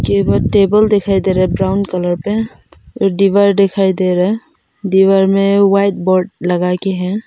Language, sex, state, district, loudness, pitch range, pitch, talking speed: Hindi, female, Arunachal Pradesh, Papum Pare, -13 LUFS, 185-200 Hz, 195 Hz, 180 wpm